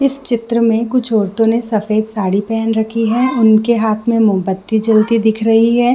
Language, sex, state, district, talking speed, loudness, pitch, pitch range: Hindi, female, Chhattisgarh, Bilaspur, 190 wpm, -14 LUFS, 225 Hz, 215-235 Hz